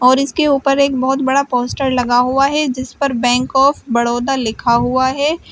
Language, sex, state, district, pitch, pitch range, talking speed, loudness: Hindi, female, Uttar Pradesh, Shamli, 265 Hz, 245-275 Hz, 195 wpm, -15 LUFS